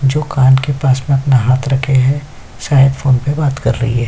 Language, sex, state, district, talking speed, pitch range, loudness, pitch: Hindi, male, Chhattisgarh, Kabirdham, 235 wpm, 130-140 Hz, -13 LUFS, 135 Hz